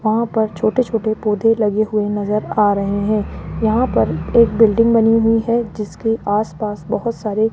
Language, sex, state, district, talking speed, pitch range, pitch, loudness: Hindi, female, Rajasthan, Jaipur, 190 wpm, 210-225 Hz, 220 Hz, -17 LUFS